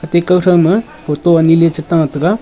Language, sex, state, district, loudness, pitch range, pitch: Wancho, male, Arunachal Pradesh, Longding, -12 LUFS, 160-180 Hz, 165 Hz